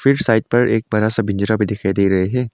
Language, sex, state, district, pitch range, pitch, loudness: Hindi, male, Arunachal Pradesh, Longding, 100-115 Hz, 110 Hz, -17 LUFS